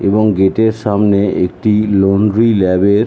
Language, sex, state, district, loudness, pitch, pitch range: Bengali, male, West Bengal, North 24 Parganas, -12 LUFS, 105 Hz, 95-105 Hz